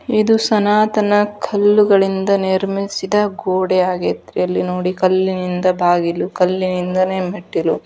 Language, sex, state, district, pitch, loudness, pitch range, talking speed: Kannada, female, Karnataka, Dharwad, 190 Hz, -16 LUFS, 180-205 Hz, 90 wpm